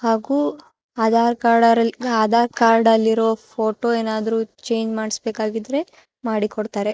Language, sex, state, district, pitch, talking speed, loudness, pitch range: Kannada, female, Karnataka, Chamarajanagar, 225 Hz, 95 wpm, -19 LUFS, 220-235 Hz